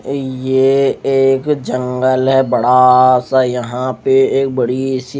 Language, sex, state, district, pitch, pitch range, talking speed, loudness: Hindi, male, Odisha, Khordha, 130 Hz, 125-135 Hz, 125 wpm, -13 LUFS